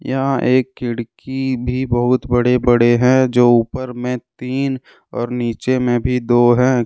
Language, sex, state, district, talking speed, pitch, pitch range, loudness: Hindi, male, Jharkhand, Deoghar, 150 wpm, 125 Hz, 120-130 Hz, -17 LUFS